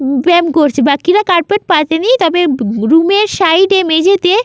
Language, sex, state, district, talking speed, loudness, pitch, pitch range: Bengali, female, West Bengal, Malda, 135 wpm, -10 LUFS, 345 Hz, 305-390 Hz